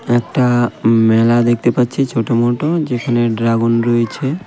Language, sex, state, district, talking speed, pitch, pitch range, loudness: Bengali, male, West Bengal, Cooch Behar, 135 wpm, 120 Hz, 115-125 Hz, -15 LUFS